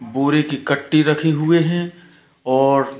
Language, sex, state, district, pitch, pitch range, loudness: Hindi, male, Madhya Pradesh, Katni, 150 Hz, 140-160 Hz, -17 LUFS